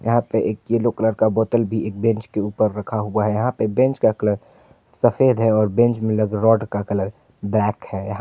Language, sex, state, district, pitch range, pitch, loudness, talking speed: Hindi, male, Jharkhand, Palamu, 105-115 Hz, 110 Hz, -20 LUFS, 240 wpm